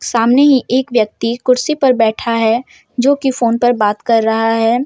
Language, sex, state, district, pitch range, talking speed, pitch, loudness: Hindi, female, Jharkhand, Deoghar, 225-255 Hz, 200 wpm, 235 Hz, -14 LUFS